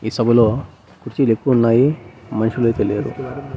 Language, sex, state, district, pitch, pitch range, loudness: Telugu, male, Andhra Pradesh, Annamaya, 120 Hz, 115-130 Hz, -17 LUFS